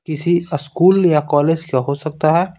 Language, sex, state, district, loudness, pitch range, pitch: Hindi, male, Bihar, Patna, -16 LUFS, 145-175 Hz, 155 Hz